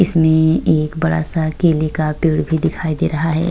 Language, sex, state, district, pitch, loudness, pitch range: Hindi, female, Uttar Pradesh, Jyotiba Phule Nagar, 160 Hz, -16 LUFS, 155-165 Hz